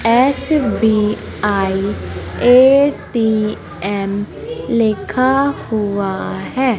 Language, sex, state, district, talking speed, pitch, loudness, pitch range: Hindi, female, Madhya Pradesh, Umaria, 45 wpm, 220 Hz, -16 LUFS, 200-260 Hz